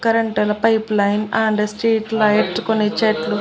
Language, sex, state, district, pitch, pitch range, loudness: Telugu, female, Andhra Pradesh, Annamaya, 220 Hz, 210-225 Hz, -18 LUFS